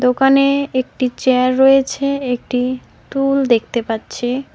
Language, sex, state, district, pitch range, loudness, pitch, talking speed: Bengali, female, West Bengal, Cooch Behar, 250-275 Hz, -16 LUFS, 255 Hz, 105 wpm